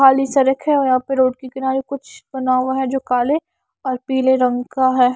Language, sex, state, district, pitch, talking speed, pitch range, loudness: Hindi, female, Punjab, Kapurthala, 265 Hz, 230 wpm, 255-270 Hz, -18 LUFS